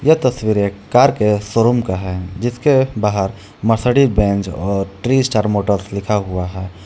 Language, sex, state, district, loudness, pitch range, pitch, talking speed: Hindi, male, Jharkhand, Palamu, -17 LUFS, 100-120 Hz, 105 Hz, 155 wpm